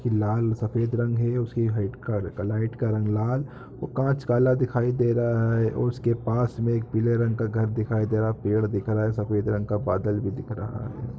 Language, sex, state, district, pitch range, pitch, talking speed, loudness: Hindi, male, Uttar Pradesh, Ghazipur, 110-120 Hz, 115 Hz, 220 wpm, -25 LUFS